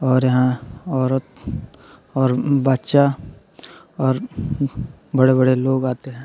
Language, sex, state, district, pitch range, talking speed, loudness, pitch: Bhojpuri, male, Bihar, Muzaffarpur, 125-135 Hz, 95 wpm, -19 LUFS, 130 Hz